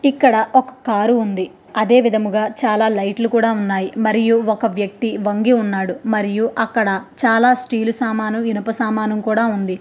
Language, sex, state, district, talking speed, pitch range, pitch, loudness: Telugu, female, Andhra Pradesh, Krishna, 155 wpm, 210-230 Hz, 220 Hz, -17 LUFS